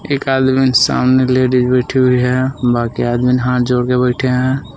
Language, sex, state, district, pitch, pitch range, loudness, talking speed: Hindi, male, Jharkhand, Palamu, 125 Hz, 125-130 Hz, -14 LUFS, 175 wpm